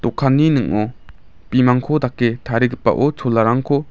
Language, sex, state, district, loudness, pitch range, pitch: Garo, male, Meghalaya, West Garo Hills, -17 LUFS, 115-140 Hz, 125 Hz